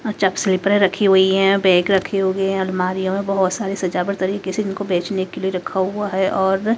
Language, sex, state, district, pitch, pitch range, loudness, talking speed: Hindi, female, Haryana, Rohtak, 190 Hz, 190-195 Hz, -18 LUFS, 210 wpm